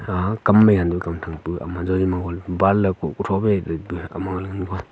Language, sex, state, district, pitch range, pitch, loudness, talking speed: Wancho, male, Arunachal Pradesh, Longding, 90-100 Hz, 95 Hz, -21 LUFS, 220 wpm